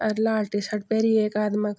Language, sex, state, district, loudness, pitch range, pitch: Garhwali, female, Uttarakhand, Tehri Garhwal, -24 LUFS, 210-220 Hz, 215 Hz